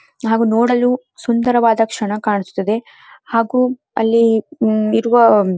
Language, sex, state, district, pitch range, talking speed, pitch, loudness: Kannada, female, Karnataka, Dharwad, 220-245 Hz, 95 wpm, 230 Hz, -16 LUFS